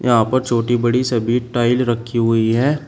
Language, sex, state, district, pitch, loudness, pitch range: Hindi, male, Uttar Pradesh, Shamli, 120 Hz, -17 LUFS, 115-125 Hz